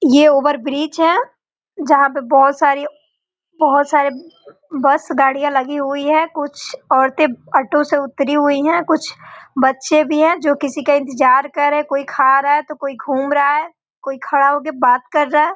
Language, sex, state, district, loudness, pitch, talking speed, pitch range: Hindi, female, Bihar, Gopalganj, -15 LUFS, 290 Hz, 185 wpm, 275-305 Hz